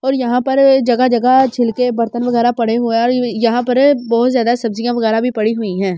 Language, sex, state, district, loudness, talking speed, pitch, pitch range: Hindi, female, Delhi, New Delhi, -14 LUFS, 220 wpm, 240 Hz, 230-250 Hz